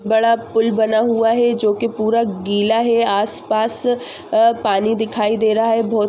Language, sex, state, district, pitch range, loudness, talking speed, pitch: Hindi, female, Andhra Pradesh, Chittoor, 215-230 Hz, -17 LUFS, 175 wpm, 225 Hz